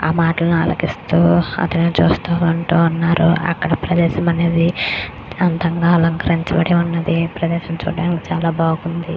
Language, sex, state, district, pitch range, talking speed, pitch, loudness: Telugu, female, Andhra Pradesh, Krishna, 165-170 Hz, 90 wpm, 170 Hz, -17 LUFS